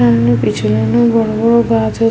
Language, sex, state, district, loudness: Bengali, female, West Bengal, Malda, -13 LUFS